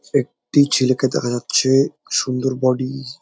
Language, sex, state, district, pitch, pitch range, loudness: Bengali, male, West Bengal, Jalpaiguri, 130 Hz, 130-135 Hz, -18 LUFS